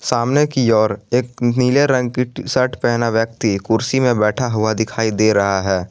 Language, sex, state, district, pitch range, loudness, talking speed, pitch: Hindi, male, Jharkhand, Garhwa, 110-125 Hz, -17 LUFS, 195 wpm, 120 Hz